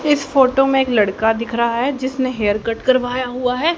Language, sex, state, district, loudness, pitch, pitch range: Hindi, female, Haryana, Jhajjar, -17 LUFS, 255 Hz, 230-265 Hz